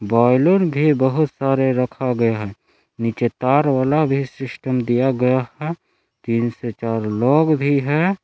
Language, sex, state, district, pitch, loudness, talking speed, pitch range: Hindi, male, Jharkhand, Palamu, 130 Hz, -19 LUFS, 155 wpm, 120-145 Hz